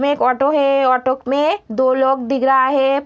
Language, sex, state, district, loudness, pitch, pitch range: Hindi, female, Uttar Pradesh, Deoria, -16 LUFS, 270 Hz, 260-275 Hz